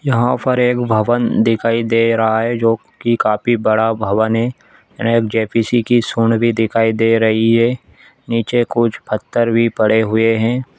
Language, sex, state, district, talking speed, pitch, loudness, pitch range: Hindi, male, Chhattisgarh, Bilaspur, 170 wpm, 115 Hz, -15 LUFS, 110-120 Hz